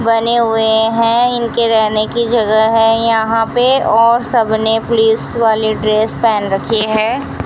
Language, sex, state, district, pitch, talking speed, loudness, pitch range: Hindi, female, Rajasthan, Bikaner, 225 Hz, 145 wpm, -12 LUFS, 220-230 Hz